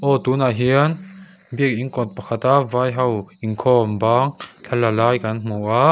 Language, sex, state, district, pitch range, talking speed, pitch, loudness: Mizo, male, Mizoram, Aizawl, 115-135 Hz, 150 wpm, 125 Hz, -19 LUFS